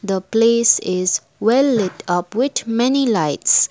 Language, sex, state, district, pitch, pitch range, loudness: English, female, Assam, Kamrup Metropolitan, 225 Hz, 185-235 Hz, -17 LUFS